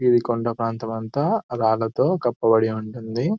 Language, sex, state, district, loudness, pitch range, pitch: Telugu, male, Telangana, Nalgonda, -22 LUFS, 110-120 Hz, 115 Hz